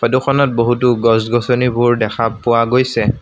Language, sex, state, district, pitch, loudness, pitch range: Assamese, male, Assam, Sonitpur, 120 Hz, -14 LUFS, 115-125 Hz